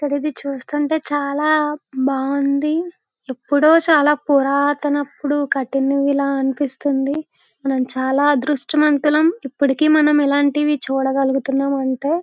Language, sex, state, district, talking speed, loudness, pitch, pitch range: Telugu, female, Andhra Pradesh, Visakhapatnam, 95 wpm, -18 LUFS, 285 Hz, 275-300 Hz